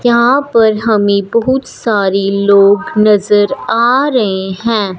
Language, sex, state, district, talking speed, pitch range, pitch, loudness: Hindi, female, Punjab, Fazilka, 120 wpm, 200-235 Hz, 215 Hz, -11 LUFS